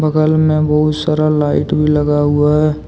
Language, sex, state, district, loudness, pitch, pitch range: Hindi, male, Jharkhand, Deoghar, -13 LUFS, 150 Hz, 150-155 Hz